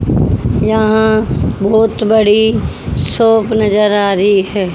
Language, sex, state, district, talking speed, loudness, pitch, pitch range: Hindi, female, Haryana, Rohtak, 100 wpm, -12 LUFS, 215 Hz, 205-220 Hz